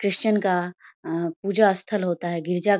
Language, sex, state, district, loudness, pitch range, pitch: Hindi, female, Bihar, Samastipur, -21 LUFS, 175-205 Hz, 185 Hz